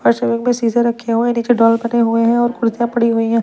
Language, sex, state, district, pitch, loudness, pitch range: Hindi, female, Punjab, Kapurthala, 230 Hz, -15 LUFS, 230-235 Hz